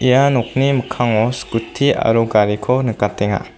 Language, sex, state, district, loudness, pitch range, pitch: Garo, female, Meghalaya, South Garo Hills, -16 LUFS, 110-130 Hz, 120 Hz